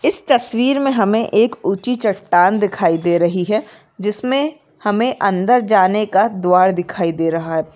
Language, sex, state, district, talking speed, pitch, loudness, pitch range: Hindi, female, Maharashtra, Aurangabad, 155 wpm, 210 Hz, -16 LUFS, 180-245 Hz